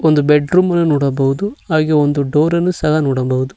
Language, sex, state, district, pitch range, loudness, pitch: Kannada, male, Karnataka, Koppal, 140-170 Hz, -15 LUFS, 150 Hz